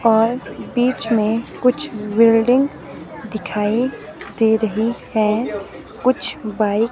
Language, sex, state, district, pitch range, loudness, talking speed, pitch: Hindi, female, Himachal Pradesh, Shimla, 215-245 Hz, -19 LUFS, 105 wpm, 225 Hz